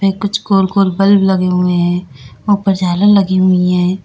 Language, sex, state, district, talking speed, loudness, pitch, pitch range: Hindi, female, Uttar Pradesh, Lalitpur, 190 wpm, -12 LUFS, 190 Hz, 180-195 Hz